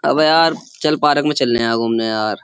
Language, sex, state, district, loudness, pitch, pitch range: Hindi, male, Uttar Pradesh, Jyotiba Phule Nagar, -16 LUFS, 145 Hz, 115-155 Hz